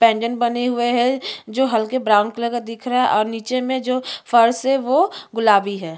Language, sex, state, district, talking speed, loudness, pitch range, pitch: Hindi, female, Chhattisgarh, Jashpur, 210 wpm, -19 LUFS, 225-255 Hz, 240 Hz